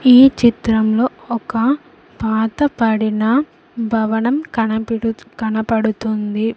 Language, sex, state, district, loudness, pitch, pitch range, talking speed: Telugu, female, Andhra Pradesh, Sri Satya Sai, -17 LUFS, 225 Hz, 220-250 Hz, 55 wpm